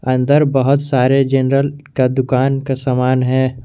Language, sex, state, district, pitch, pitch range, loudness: Hindi, male, Jharkhand, Garhwa, 130 Hz, 130-135 Hz, -15 LUFS